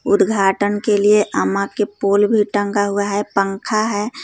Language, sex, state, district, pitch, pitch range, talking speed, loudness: Hindi, female, Jharkhand, Garhwa, 205 Hz, 200-210 Hz, 185 wpm, -17 LUFS